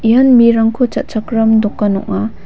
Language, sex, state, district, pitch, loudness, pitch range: Garo, female, Meghalaya, West Garo Hills, 225 Hz, -12 LUFS, 215-240 Hz